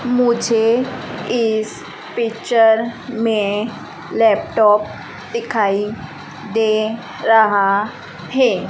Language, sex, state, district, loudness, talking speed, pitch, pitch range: Hindi, female, Madhya Pradesh, Dhar, -17 LUFS, 60 wpm, 220 Hz, 210-235 Hz